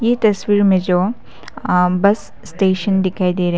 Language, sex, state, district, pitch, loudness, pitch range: Hindi, female, Arunachal Pradesh, Papum Pare, 190 Hz, -16 LUFS, 180-205 Hz